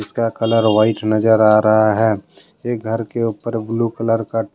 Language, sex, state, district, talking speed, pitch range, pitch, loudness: Hindi, male, Jharkhand, Deoghar, 185 wpm, 110-115 Hz, 110 Hz, -17 LUFS